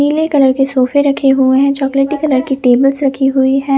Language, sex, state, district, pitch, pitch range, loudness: Hindi, female, Punjab, Fazilka, 275 Hz, 265-280 Hz, -12 LUFS